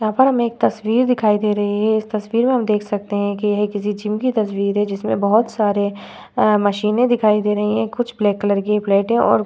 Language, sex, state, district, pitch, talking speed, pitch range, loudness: Hindi, female, Uttar Pradesh, Budaun, 210 Hz, 250 wpm, 205-225 Hz, -18 LUFS